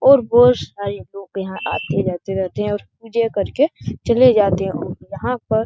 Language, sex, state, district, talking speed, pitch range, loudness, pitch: Hindi, male, Bihar, Jahanabad, 170 wpm, 190-240 Hz, -18 LUFS, 200 Hz